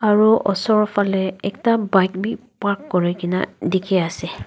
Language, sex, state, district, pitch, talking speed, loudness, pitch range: Nagamese, female, Nagaland, Dimapur, 200 Hz, 145 wpm, -19 LUFS, 185-215 Hz